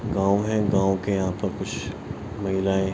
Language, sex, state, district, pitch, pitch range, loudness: Hindi, male, Bihar, Araria, 95 Hz, 95-100 Hz, -25 LUFS